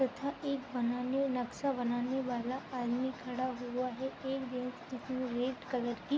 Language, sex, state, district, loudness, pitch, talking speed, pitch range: Hindi, female, Jharkhand, Sahebganj, -36 LUFS, 255 Hz, 155 wpm, 245-265 Hz